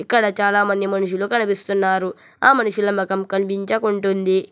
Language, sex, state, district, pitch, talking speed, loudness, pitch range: Telugu, male, Telangana, Hyderabad, 200 Hz, 105 wpm, -19 LUFS, 195-210 Hz